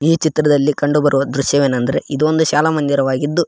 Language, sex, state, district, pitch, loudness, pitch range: Kannada, male, Karnataka, Raichur, 145 Hz, -15 LUFS, 140-155 Hz